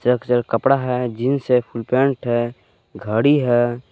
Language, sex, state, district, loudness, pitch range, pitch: Hindi, male, Jharkhand, Palamu, -19 LUFS, 115-130 Hz, 120 Hz